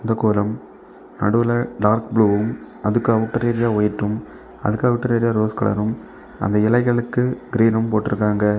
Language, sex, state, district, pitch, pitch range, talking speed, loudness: Tamil, male, Tamil Nadu, Kanyakumari, 110 Hz, 105-115 Hz, 105 wpm, -20 LUFS